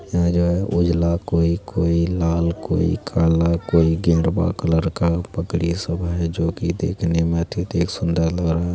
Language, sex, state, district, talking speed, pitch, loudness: Hindi, male, Bihar, Jamui, 170 wpm, 85 Hz, -20 LUFS